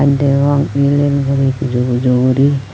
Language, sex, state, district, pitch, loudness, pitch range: Chakma, female, Tripura, Unakoti, 140 Hz, -14 LUFS, 130-140 Hz